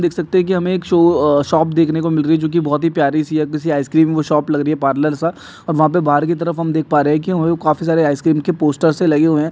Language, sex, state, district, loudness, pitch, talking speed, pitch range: Hindi, male, Maharashtra, Nagpur, -15 LUFS, 160 Hz, 305 wpm, 150-165 Hz